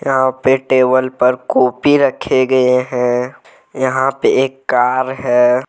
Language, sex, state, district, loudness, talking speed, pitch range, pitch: Hindi, male, Jharkhand, Deoghar, -14 LUFS, 135 wpm, 125-130 Hz, 130 Hz